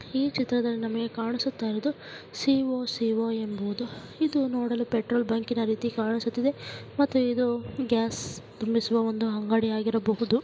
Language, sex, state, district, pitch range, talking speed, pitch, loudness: Kannada, female, Karnataka, Dharwad, 225-250 Hz, 110 wpm, 230 Hz, -28 LUFS